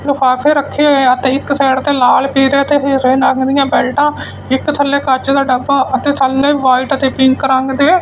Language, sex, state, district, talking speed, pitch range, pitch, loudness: Punjabi, male, Punjab, Fazilka, 200 wpm, 260-280 Hz, 275 Hz, -12 LUFS